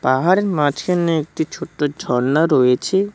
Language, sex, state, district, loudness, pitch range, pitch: Bengali, male, West Bengal, Cooch Behar, -18 LUFS, 140-180 Hz, 155 Hz